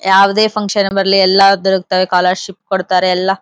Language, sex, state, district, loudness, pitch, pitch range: Kannada, female, Karnataka, Bellary, -12 LUFS, 195 Hz, 185-195 Hz